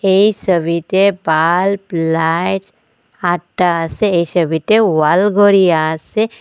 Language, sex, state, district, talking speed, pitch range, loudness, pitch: Bengali, female, Assam, Hailakandi, 105 wpm, 165-200 Hz, -14 LUFS, 180 Hz